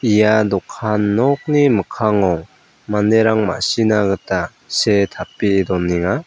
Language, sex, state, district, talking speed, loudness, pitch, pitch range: Garo, male, Meghalaya, West Garo Hills, 95 wpm, -17 LUFS, 105 Hz, 100-110 Hz